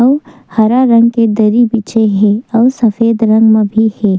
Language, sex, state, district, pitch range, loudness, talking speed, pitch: Chhattisgarhi, female, Chhattisgarh, Sukma, 215-235 Hz, -10 LUFS, 185 wpm, 225 Hz